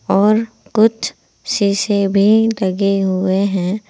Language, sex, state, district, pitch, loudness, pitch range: Hindi, female, Uttar Pradesh, Saharanpur, 200 Hz, -16 LUFS, 195-215 Hz